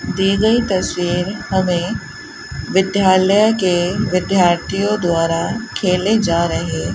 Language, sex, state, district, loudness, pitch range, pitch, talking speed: Hindi, female, Rajasthan, Bikaner, -16 LUFS, 175-200 Hz, 190 Hz, 105 wpm